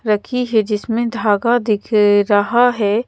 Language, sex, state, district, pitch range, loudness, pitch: Hindi, female, Madhya Pradesh, Bhopal, 205-240 Hz, -16 LUFS, 220 Hz